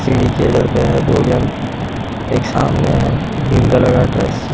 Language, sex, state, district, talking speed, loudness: Hindi, male, Maharashtra, Mumbai Suburban, 160 wpm, -15 LUFS